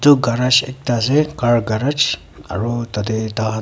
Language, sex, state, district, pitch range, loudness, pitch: Nagamese, female, Nagaland, Kohima, 110-130 Hz, -18 LUFS, 120 Hz